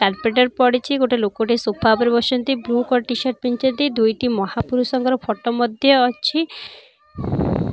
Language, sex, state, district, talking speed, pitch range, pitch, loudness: Odia, female, Odisha, Nuapada, 125 wpm, 235-255 Hz, 245 Hz, -19 LUFS